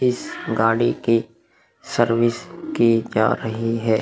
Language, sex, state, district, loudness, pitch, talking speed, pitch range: Hindi, male, Bihar, Vaishali, -20 LUFS, 115 Hz, 120 wpm, 115-120 Hz